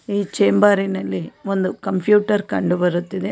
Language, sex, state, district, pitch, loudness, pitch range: Kannada, female, Karnataka, Koppal, 195 Hz, -19 LUFS, 180-205 Hz